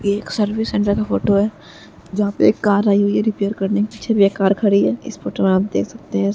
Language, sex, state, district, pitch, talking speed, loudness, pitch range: Hindi, female, Uttar Pradesh, Jyotiba Phule Nagar, 205 Hz, 275 wpm, -18 LUFS, 200-210 Hz